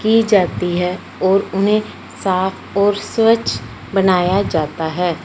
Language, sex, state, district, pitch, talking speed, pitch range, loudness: Hindi, female, Punjab, Fazilka, 190 Hz, 125 wpm, 175-205 Hz, -17 LUFS